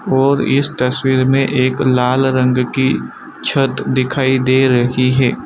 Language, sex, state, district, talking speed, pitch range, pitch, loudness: Hindi, male, Gujarat, Valsad, 145 wpm, 130-135 Hz, 130 Hz, -14 LUFS